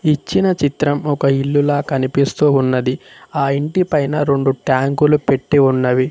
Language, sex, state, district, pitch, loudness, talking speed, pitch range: Telugu, male, Telangana, Mahabubabad, 140 Hz, -16 LUFS, 135 wpm, 135-150 Hz